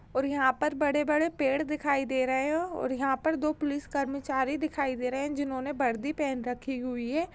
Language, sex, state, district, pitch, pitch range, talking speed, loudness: Hindi, female, Uttar Pradesh, Jyotiba Phule Nagar, 280 Hz, 265-300 Hz, 205 wpm, -30 LUFS